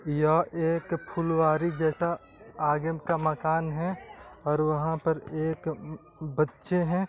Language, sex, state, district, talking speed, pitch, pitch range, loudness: Hindi, male, Bihar, East Champaran, 150 wpm, 160 Hz, 155-170 Hz, -28 LUFS